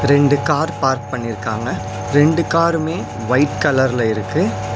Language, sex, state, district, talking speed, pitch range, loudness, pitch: Tamil, male, Tamil Nadu, Nilgiris, 115 wpm, 110-145 Hz, -17 LUFS, 130 Hz